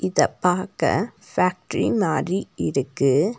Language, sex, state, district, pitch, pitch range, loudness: Tamil, female, Tamil Nadu, Nilgiris, 180 Hz, 140-200 Hz, -22 LUFS